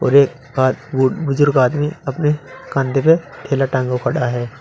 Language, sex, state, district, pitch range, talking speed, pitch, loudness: Hindi, male, Uttar Pradesh, Saharanpur, 130-150 Hz, 130 wpm, 135 Hz, -17 LUFS